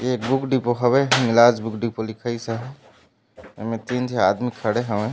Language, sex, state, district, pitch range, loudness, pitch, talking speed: Chhattisgarhi, male, Chhattisgarh, Raigarh, 110-125 Hz, -21 LUFS, 120 Hz, 175 wpm